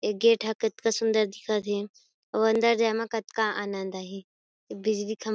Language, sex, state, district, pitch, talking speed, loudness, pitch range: Chhattisgarhi, female, Chhattisgarh, Kabirdham, 220 Hz, 190 wpm, -27 LUFS, 205-225 Hz